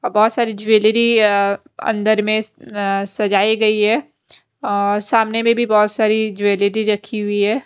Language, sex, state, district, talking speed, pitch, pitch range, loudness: Hindi, female, Haryana, Rohtak, 165 wpm, 215 Hz, 205-220 Hz, -16 LUFS